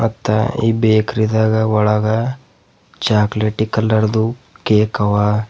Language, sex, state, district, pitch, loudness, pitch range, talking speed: Kannada, male, Karnataka, Bidar, 110 Hz, -16 LUFS, 105-110 Hz, 110 wpm